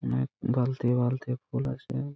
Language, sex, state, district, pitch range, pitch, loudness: Bengali, male, West Bengal, Purulia, 120-130 Hz, 125 Hz, -29 LUFS